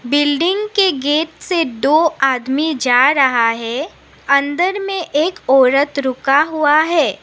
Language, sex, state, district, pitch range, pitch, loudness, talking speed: Hindi, female, Assam, Sonitpur, 265-320 Hz, 290 Hz, -15 LUFS, 135 wpm